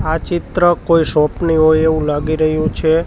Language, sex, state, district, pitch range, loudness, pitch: Gujarati, male, Gujarat, Gandhinagar, 155-165 Hz, -15 LUFS, 160 Hz